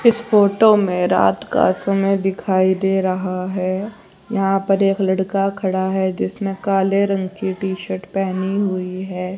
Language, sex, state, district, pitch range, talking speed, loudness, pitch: Hindi, female, Haryana, Jhajjar, 185-195 Hz, 160 wpm, -18 LUFS, 195 Hz